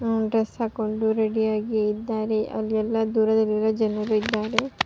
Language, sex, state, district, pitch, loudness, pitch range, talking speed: Kannada, female, Karnataka, Raichur, 220 Hz, -24 LUFS, 215-225 Hz, 125 wpm